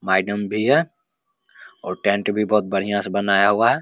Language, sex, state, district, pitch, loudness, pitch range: Hindi, male, Bihar, Begusarai, 105 Hz, -20 LUFS, 100-160 Hz